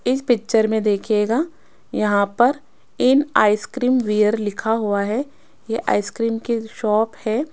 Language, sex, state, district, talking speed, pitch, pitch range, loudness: Hindi, female, Rajasthan, Jaipur, 135 wpm, 225 Hz, 210-250 Hz, -20 LUFS